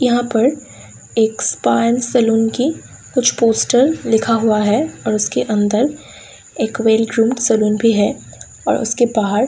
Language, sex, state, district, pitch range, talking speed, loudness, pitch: Hindi, female, Uttar Pradesh, Varanasi, 220-245 Hz, 160 wpm, -16 LUFS, 230 Hz